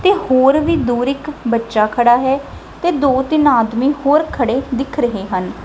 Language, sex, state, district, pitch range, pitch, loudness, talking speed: Punjabi, female, Punjab, Kapurthala, 240-295 Hz, 265 Hz, -15 LUFS, 180 wpm